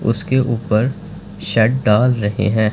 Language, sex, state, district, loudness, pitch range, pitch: Hindi, male, Punjab, Fazilka, -17 LUFS, 105-130 Hz, 115 Hz